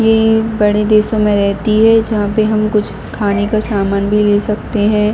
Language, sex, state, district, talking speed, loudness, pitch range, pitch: Hindi, female, Jharkhand, Jamtara, 200 wpm, -13 LUFS, 205-215 Hz, 210 Hz